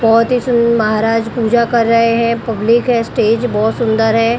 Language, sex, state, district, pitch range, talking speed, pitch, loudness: Hindi, female, Maharashtra, Mumbai Suburban, 225-235 Hz, 190 wpm, 230 Hz, -13 LUFS